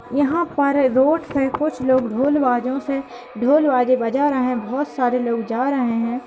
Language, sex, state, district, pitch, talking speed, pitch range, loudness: Hindi, female, Uttar Pradesh, Hamirpur, 260 Hz, 190 wpm, 245-280 Hz, -19 LUFS